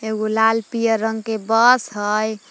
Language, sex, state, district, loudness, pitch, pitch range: Magahi, female, Jharkhand, Palamu, -18 LUFS, 220 Hz, 215-225 Hz